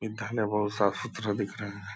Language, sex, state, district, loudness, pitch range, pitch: Hindi, male, Bihar, Purnia, -30 LUFS, 100-110 Hz, 105 Hz